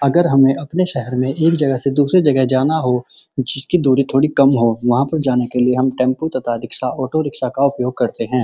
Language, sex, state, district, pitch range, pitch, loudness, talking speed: Hindi, male, Uttar Pradesh, Muzaffarnagar, 125-145 Hz, 135 Hz, -16 LUFS, 220 wpm